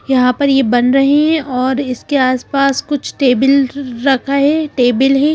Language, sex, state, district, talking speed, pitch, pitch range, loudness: Hindi, female, Bihar, Katihar, 180 wpm, 270 Hz, 255-280 Hz, -13 LUFS